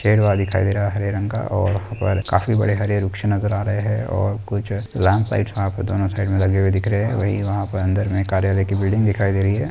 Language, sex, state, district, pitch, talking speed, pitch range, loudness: Hindi, male, Maharashtra, Pune, 100 Hz, 280 wpm, 95-105 Hz, -20 LUFS